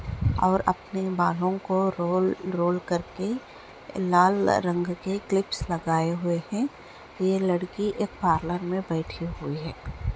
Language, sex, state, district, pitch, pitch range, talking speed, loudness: Hindi, female, Bihar, Bhagalpur, 180 Hz, 170-190 Hz, 130 wpm, -26 LUFS